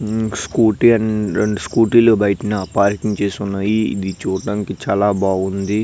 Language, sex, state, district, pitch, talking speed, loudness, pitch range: Telugu, male, Andhra Pradesh, Visakhapatnam, 105 Hz, 145 wpm, -17 LUFS, 100-110 Hz